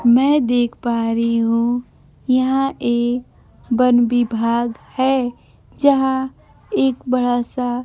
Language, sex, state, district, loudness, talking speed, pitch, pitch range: Hindi, female, Bihar, Kaimur, -18 LUFS, 105 wpm, 245 Hz, 235-260 Hz